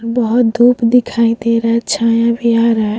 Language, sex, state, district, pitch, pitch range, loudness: Hindi, female, Bihar, Vaishali, 230 Hz, 230-235 Hz, -13 LUFS